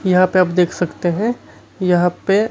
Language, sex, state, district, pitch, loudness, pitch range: Hindi, male, Bihar, Kaimur, 185 Hz, -17 LUFS, 180-195 Hz